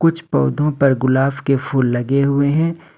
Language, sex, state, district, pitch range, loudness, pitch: Hindi, male, Jharkhand, Ranchi, 130-150 Hz, -17 LUFS, 140 Hz